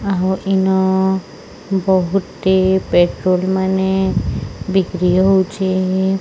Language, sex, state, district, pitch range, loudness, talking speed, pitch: Odia, male, Odisha, Sambalpur, 185-190 Hz, -16 LUFS, 70 wpm, 190 Hz